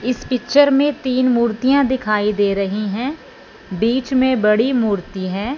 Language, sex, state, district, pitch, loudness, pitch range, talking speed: Hindi, female, Punjab, Fazilka, 245 Hz, -17 LUFS, 210-260 Hz, 150 wpm